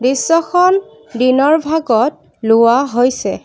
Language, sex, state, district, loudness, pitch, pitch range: Assamese, female, Assam, Kamrup Metropolitan, -13 LUFS, 255 Hz, 235-320 Hz